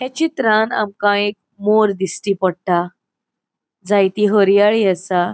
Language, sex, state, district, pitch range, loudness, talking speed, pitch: Konkani, female, Goa, North and South Goa, 190-215 Hz, -16 LUFS, 110 wpm, 205 Hz